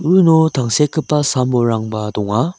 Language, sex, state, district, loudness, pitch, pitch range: Garo, male, Meghalaya, South Garo Hills, -15 LUFS, 130 Hz, 115-155 Hz